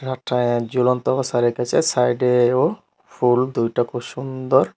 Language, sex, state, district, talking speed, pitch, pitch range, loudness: Bengali, male, Tripura, Unakoti, 65 wpm, 125 Hz, 120-130 Hz, -20 LUFS